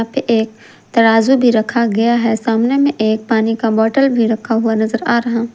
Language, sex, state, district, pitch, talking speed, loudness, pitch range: Hindi, female, Jharkhand, Garhwa, 230 Hz, 225 wpm, -14 LUFS, 225-235 Hz